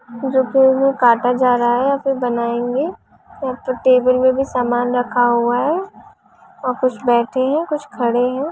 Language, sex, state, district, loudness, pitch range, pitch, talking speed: Hindi, female, Bihar, Sitamarhi, -17 LUFS, 245-270 Hz, 255 Hz, 170 wpm